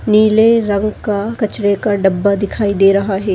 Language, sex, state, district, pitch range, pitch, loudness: Hindi, female, Chhattisgarh, Sarguja, 200-215 Hz, 205 Hz, -14 LUFS